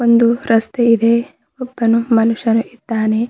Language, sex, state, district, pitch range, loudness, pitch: Kannada, female, Karnataka, Bidar, 225-235 Hz, -15 LUFS, 230 Hz